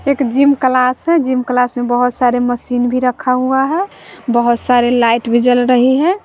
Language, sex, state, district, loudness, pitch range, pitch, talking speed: Hindi, female, Bihar, West Champaran, -13 LUFS, 245-265 Hz, 250 Hz, 190 wpm